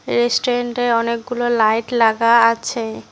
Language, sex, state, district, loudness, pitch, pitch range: Bengali, female, West Bengal, Cooch Behar, -17 LUFS, 230 Hz, 215-240 Hz